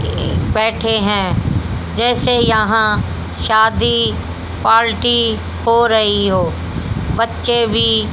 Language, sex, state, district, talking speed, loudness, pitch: Hindi, female, Haryana, Jhajjar, 90 wpm, -15 LUFS, 215 Hz